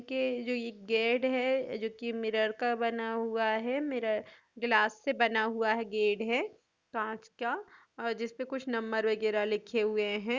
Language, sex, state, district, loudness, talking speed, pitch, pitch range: Hindi, female, Chhattisgarh, Kabirdham, -32 LUFS, 175 wpm, 230 Hz, 220-245 Hz